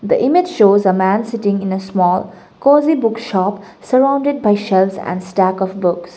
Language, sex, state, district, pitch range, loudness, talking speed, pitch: English, female, Sikkim, Gangtok, 190-235 Hz, -15 LUFS, 175 wpm, 200 Hz